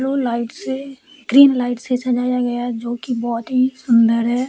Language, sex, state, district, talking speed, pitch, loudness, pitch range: Hindi, female, Bihar, Katihar, 200 wpm, 250 Hz, -18 LUFS, 240-265 Hz